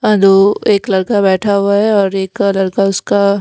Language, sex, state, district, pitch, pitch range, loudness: Hindi, female, Himachal Pradesh, Shimla, 200 Hz, 195-205 Hz, -12 LUFS